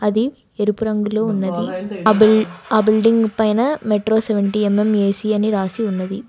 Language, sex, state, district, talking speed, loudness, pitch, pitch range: Telugu, female, Telangana, Hyderabad, 150 wpm, -17 LUFS, 215 Hz, 205-220 Hz